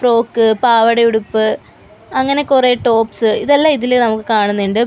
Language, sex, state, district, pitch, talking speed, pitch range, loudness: Malayalam, female, Kerala, Kollam, 230 Hz, 135 wpm, 220-250 Hz, -13 LUFS